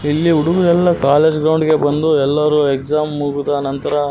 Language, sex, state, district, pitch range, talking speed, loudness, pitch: Kannada, male, Karnataka, Raichur, 145-155 Hz, 160 wpm, -15 LUFS, 150 Hz